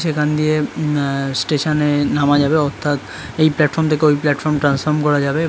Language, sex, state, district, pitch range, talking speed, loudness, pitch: Bengali, male, West Bengal, Kolkata, 145-155 Hz, 175 wpm, -17 LUFS, 150 Hz